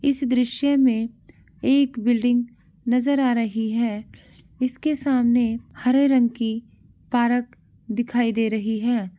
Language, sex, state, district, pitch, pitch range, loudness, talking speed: Angika, male, Bihar, Madhepura, 240 Hz, 230-255 Hz, -22 LUFS, 125 wpm